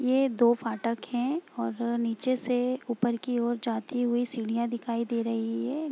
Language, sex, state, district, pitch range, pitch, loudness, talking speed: Hindi, female, Bihar, Gopalganj, 230-250 Hz, 240 Hz, -29 LUFS, 180 wpm